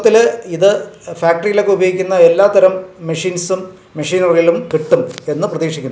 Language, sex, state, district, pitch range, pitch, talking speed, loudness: Malayalam, male, Kerala, Kasaragod, 170-200 Hz, 185 Hz, 130 wpm, -14 LUFS